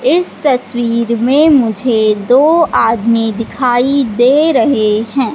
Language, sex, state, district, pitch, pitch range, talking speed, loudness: Hindi, female, Madhya Pradesh, Katni, 245 Hz, 225-275 Hz, 110 wpm, -12 LUFS